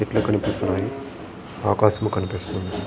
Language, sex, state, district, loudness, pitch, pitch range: Telugu, male, Andhra Pradesh, Srikakulam, -23 LUFS, 105 Hz, 95-105 Hz